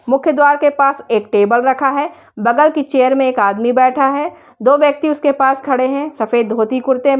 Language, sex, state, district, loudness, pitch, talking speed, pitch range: Hindi, female, Uttar Pradesh, Shamli, -14 LUFS, 270 Hz, 215 wpm, 245-285 Hz